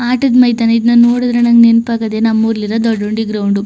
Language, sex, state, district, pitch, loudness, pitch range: Kannada, female, Karnataka, Chamarajanagar, 230 Hz, -11 LUFS, 220-240 Hz